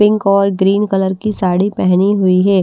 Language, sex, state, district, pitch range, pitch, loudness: Hindi, female, Haryana, Rohtak, 190-205 Hz, 195 Hz, -13 LUFS